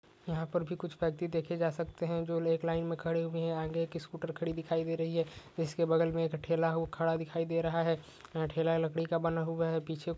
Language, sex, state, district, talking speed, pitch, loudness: Hindi, male, Rajasthan, Nagaur, 230 wpm, 165 Hz, -34 LUFS